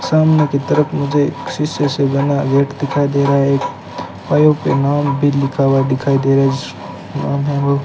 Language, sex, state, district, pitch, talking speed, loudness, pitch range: Hindi, male, Rajasthan, Bikaner, 140 Hz, 205 wpm, -15 LUFS, 140-145 Hz